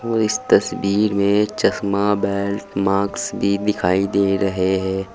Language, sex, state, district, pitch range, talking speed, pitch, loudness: Hindi, male, Uttar Pradesh, Saharanpur, 95-105 Hz, 140 wpm, 100 Hz, -19 LUFS